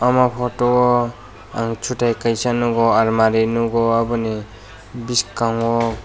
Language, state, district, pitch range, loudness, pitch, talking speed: Kokborok, Tripura, West Tripura, 115-120 Hz, -18 LUFS, 115 Hz, 110 wpm